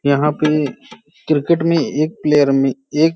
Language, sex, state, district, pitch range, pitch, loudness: Hindi, male, Uttar Pradesh, Hamirpur, 140-165 Hz, 150 Hz, -16 LUFS